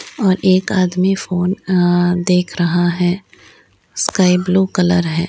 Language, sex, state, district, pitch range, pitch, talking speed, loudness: Hindi, female, Uttar Pradesh, Gorakhpur, 175-185 Hz, 180 Hz, 135 wpm, -15 LUFS